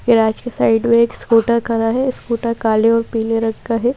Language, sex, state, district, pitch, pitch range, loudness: Hindi, female, Madhya Pradesh, Bhopal, 230 Hz, 225-235 Hz, -16 LUFS